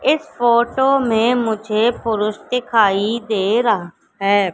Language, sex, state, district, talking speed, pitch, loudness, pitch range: Hindi, female, Madhya Pradesh, Katni, 120 wpm, 225 Hz, -17 LUFS, 210-240 Hz